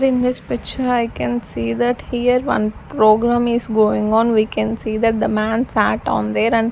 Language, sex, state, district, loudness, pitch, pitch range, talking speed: English, female, Chandigarh, Chandigarh, -18 LUFS, 225 Hz, 215-240 Hz, 205 wpm